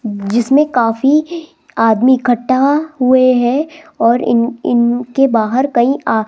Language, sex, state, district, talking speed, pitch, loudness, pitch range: Hindi, female, Rajasthan, Jaipur, 125 wpm, 250 Hz, -13 LUFS, 235-275 Hz